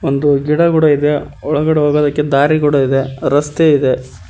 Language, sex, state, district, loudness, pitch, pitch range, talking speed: Kannada, male, Karnataka, Koppal, -13 LUFS, 145 Hz, 135-150 Hz, 155 wpm